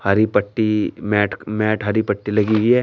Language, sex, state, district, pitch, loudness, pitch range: Hindi, male, Uttar Pradesh, Shamli, 105 Hz, -19 LUFS, 105-110 Hz